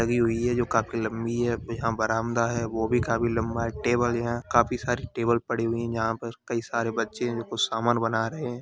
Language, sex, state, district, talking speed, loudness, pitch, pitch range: Hindi, male, Uttar Pradesh, Hamirpur, 230 wpm, -27 LUFS, 115 Hz, 115-120 Hz